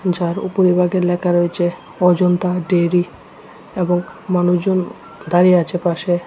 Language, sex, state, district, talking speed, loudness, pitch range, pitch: Bengali, male, Tripura, West Tripura, 105 wpm, -17 LUFS, 175-180 Hz, 180 Hz